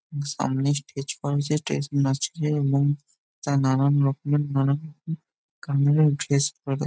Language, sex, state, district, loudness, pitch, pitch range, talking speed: Bengali, male, West Bengal, Jhargram, -24 LUFS, 145 Hz, 140-150 Hz, 130 wpm